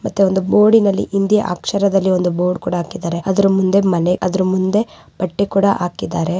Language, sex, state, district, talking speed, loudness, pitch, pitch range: Kannada, female, Karnataka, Raichur, 160 wpm, -16 LUFS, 190 Hz, 180-200 Hz